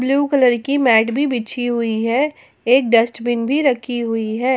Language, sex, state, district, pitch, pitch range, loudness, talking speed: Hindi, female, Jharkhand, Ranchi, 245 Hz, 230-270 Hz, -17 LUFS, 185 wpm